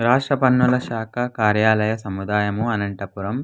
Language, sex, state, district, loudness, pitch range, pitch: Telugu, male, Andhra Pradesh, Anantapur, -20 LUFS, 105-125 Hz, 110 Hz